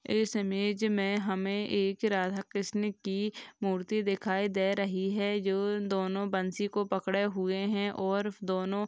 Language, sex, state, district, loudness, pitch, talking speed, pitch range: Hindi, female, Maharashtra, Sindhudurg, -31 LUFS, 200 Hz, 155 wpm, 195-205 Hz